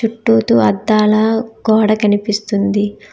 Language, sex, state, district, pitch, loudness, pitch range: Telugu, female, Telangana, Hyderabad, 210 Hz, -14 LUFS, 205-220 Hz